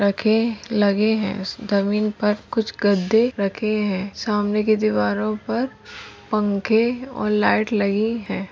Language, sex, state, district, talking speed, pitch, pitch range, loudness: Hindi, female, Maharashtra, Solapur, 125 wpm, 210 Hz, 200-220 Hz, -21 LUFS